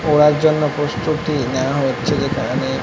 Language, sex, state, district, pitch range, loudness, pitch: Bengali, male, West Bengal, North 24 Parganas, 135-150 Hz, -18 LUFS, 150 Hz